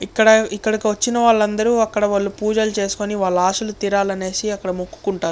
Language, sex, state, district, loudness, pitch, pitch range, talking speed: Telugu, male, Andhra Pradesh, Chittoor, -18 LUFS, 210 Hz, 195-220 Hz, 145 wpm